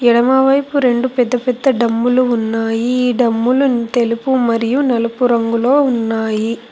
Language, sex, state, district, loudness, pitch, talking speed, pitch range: Telugu, female, Telangana, Hyderabad, -15 LUFS, 245 Hz, 105 wpm, 230-255 Hz